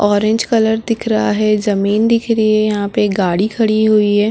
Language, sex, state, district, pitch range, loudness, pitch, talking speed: Hindi, female, Chhattisgarh, Korba, 205-220 Hz, -14 LUFS, 215 Hz, 220 wpm